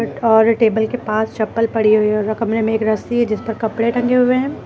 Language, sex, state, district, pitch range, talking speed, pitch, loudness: Hindi, female, Uttar Pradesh, Lucknow, 220-230 Hz, 255 wpm, 225 Hz, -16 LUFS